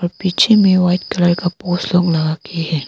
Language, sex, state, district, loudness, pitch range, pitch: Hindi, female, Arunachal Pradesh, Papum Pare, -15 LUFS, 170-185 Hz, 175 Hz